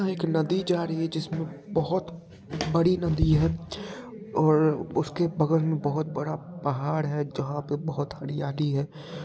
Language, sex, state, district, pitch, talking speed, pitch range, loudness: Hindi, male, Bihar, Purnia, 160 Hz, 150 wpm, 150-165 Hz, -27 LUFS